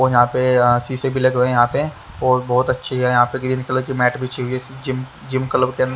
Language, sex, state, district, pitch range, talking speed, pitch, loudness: Hindi, male, Haryana, Charkhi Dadri, 125-130 Hz, 310 wpm, 130 Hz, -18 LUFS